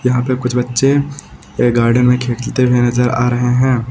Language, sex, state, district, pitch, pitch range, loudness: Hindi, male, Uttar Pradesh, Lucknow, 125 Hz, 120-125 Hz, -14 LUFS